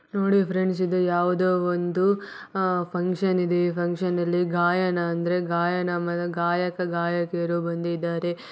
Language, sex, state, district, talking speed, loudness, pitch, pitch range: Kannada, female, Karnataka, Bellary, 120 wpm, -24 LUFS, 175 Hz, 175-185 Hz